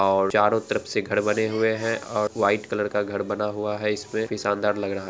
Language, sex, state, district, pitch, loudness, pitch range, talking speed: Angika, female, Bihar, Araria, 105 Hz, -24 LUFS, 100-105 Hz, 270 wpm